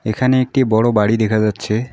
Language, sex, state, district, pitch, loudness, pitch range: Bengali, female, West Bengal, Alipurduar, 110 Hz, -16 LUFS, 110-125 Hz